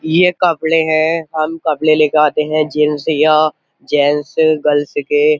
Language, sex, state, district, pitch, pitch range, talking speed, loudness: Hindi, male, Uttar Pradesh, Jyotiba Phule Nagar, 155 Hz, 150-160 Hz, 145 wpm, -14 LUFS